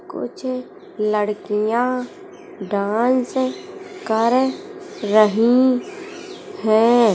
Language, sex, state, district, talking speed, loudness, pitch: Hindi, female, Uttar Pradesh, Hamirpur, 50 wpm, -19 LUFS, 250 Hz